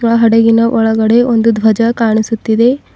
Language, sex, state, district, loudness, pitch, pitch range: Kannada, female, Karnataka, Bidar, -11 LUFS, 230 Hz, 225-230 Hz